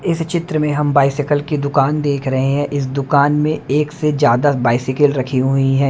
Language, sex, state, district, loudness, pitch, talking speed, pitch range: Hindi, male, Haryana, Rohtak, -16 LUFS, 145 Hz, 205 wpm, 135-150 Hz